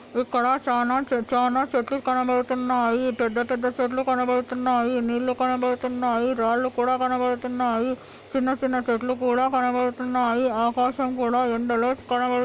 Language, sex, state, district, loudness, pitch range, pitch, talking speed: Telugu, female, Andhra Pradesh, Anantapur, -24 LUFS, 245-255 Hz, 250 Hz, 110 wpm